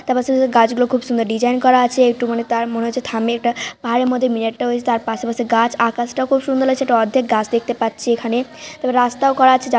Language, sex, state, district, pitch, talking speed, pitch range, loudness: Bengali, female, West Bengal, Malda, 240 Hz, 240 wpm, 235-255 Hz, -17 LUFS